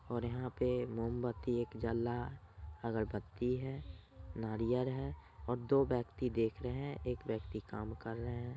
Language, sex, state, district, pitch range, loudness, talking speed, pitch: Hindi, male, Bihar, Saran, 110-125 Hz, -39 LUFS, 155 wpm, 120 Hz